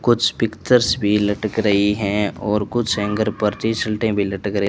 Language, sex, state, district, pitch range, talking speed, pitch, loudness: Hindi, male, Rajasthan, Bikaner, 100-110 Hz, 180 wpm, 105 Hz, -19 LUFS